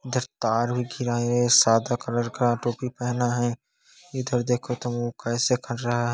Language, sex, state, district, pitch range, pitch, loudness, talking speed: Hindi, female, Chhattisgarh, Kabirdham, 120-125 Hz, 120 Hz, -24 LUFS, 185 wpm